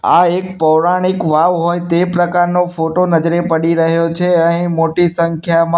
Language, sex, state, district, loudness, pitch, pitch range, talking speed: Gujarati, male, Gujarat, Gandhinagar, -13 LUFS, 170 Hz, 165-175 Hz, 155 wpm